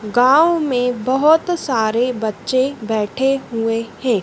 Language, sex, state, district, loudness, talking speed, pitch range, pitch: Hindi, female, Madhya Pradesh, Dhar, -17 LUFS, 115 wpm, 225-270 Hz, 250 Hz